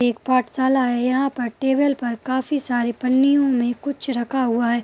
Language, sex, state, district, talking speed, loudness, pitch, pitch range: Hindi, female, Maharashtra, Aurangabad, 185 wpm, -20 LUFS, 255 Hz, 240-270 Hz